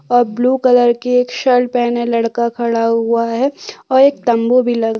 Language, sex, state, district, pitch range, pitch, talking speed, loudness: Hindi, female, Chhattisgarh, Korba, 230-250 Hz, 240 Hz, 190 wpm, -14 LUFS